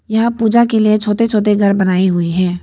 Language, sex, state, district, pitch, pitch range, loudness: Hindi, female, Arunachal Pradesh, Papum Pare, 210 Hz, 185-220 Hz, -13 LUFS